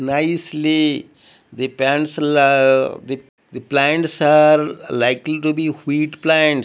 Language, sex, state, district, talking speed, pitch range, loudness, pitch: English, male, Odisha, Malkangiri, 115 wpm, 135-155 Hz, -16 LUFS, 150 Hz